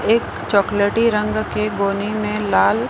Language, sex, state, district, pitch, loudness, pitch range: Hindi, female, Maharashtra, Mumbai Suburban, 210 Hz, -18 LUFS, 200-215 Hz